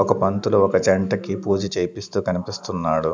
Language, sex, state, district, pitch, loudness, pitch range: Telugu, male, Andhra Pradesh, Sri Satya Sai, 95 Hz, -21 LUFS, 90-100 Hz